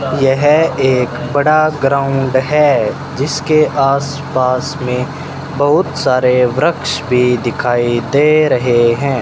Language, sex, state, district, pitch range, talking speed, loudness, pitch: Hindi, male, Rajasthan, Bikaner, 125-150 Hz, 105 wpm, -13 LUFS, 135 Hz